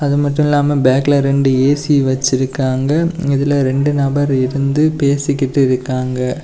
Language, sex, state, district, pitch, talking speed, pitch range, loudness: Tamil, male, Tamil Nadu, Kanyakumari, 140 Hz, 130 wpm, 130-145 Hz, -15 LUFS